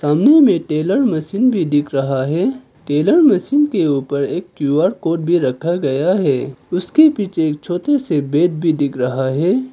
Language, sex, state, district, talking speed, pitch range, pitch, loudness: Hindi, male, Arunachal Pradesh, Papum Pare, 175 wpm, 140-180 Hz, 155 Hz, -16 LUFS